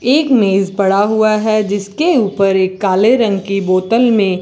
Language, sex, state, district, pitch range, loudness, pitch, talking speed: Hindi, female, Rajasthan, Bikaner, 195-225 Hz, -13 LUFS, 205 Hz, 175 wpm